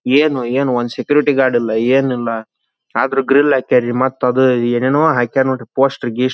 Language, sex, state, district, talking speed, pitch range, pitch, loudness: Kannada, male, Karnataka, Belgaum, 160 wpm, 120-135 Hz, 130 Hz, -15 LUFS